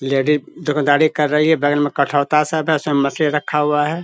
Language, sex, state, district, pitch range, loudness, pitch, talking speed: Hindi, male, Bihar, Bhagalpur, 145-155 Hz, -17 LUFS, 150 Hz, 225 wpm